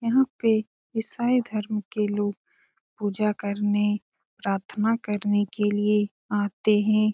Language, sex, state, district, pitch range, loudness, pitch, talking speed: Hindi, female, Bihar, Lakhisarai, 205-220 Hz, -25 LUFS, 210 Hz, 125 wpm